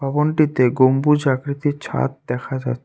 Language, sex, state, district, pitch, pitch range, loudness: Bengali, male, West Bengal, Alipurduar, 135 Hz, 130-145 Hz, -19 LUFS